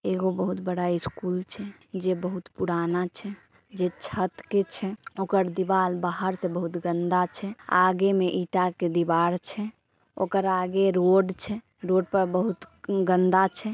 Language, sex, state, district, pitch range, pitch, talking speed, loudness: Maithili, female, Bihar, Samastipur, 180-195 Hz, 185 Hz, 155 wpm, -26 LUFS